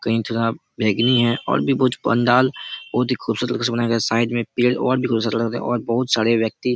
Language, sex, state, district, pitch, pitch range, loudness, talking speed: Hindi, male, Chhattisgarh, Raigarh, 120 Hz, 115-125 Hz, -20 LUFS, 255 wpm